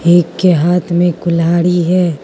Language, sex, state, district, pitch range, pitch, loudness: Hindi, female, Mizoram, Aizawl, 170-175 Hz, 175 Hz, -12 LUFS